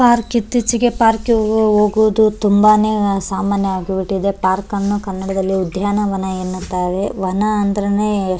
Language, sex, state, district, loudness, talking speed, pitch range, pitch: Kannada, male, Karnataka, Bellary, -16 LUFS, 115 wpm, 190-215 Hz, 205 Hz